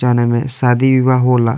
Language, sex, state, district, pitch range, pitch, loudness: Bhojpuri, male, Bihar, East Champaran, 120-130 Hz, 125 Hz, -13 LUFS